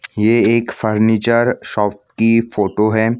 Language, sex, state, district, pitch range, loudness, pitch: Hindi, male, Maharashtra, Gondia, 110-115 Hz, -15 LUFS, 110 Hz